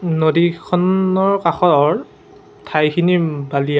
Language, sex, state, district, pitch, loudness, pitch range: Assamese, male, Assam, Sonitpur, 175 Hz, -16 LUFS, 155-190 Hz